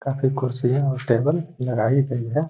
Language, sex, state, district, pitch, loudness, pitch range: Hindi, male, Bihar, Gaya, 130 Hz, -22 LUFS, 125-140 Hz